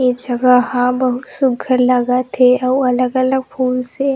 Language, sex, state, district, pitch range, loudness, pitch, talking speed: Chhattisgarhi, female, Chhattisgarh, Rajnandgaon, 250-260 Hz, -15 LUFS, 255 Hz, 160 wpm